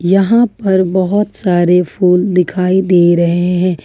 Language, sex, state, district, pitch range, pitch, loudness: Hindi, female, Jharkhand, Ranchi, 180-190 Hz, 185 Hz, -12 LUFS